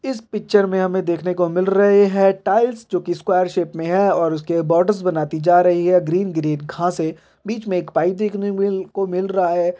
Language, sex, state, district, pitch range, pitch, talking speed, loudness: Hindi, male, Bihar, Purnia, 175-195 Hz, 180 Hz, 215 wpm, -18 LUFS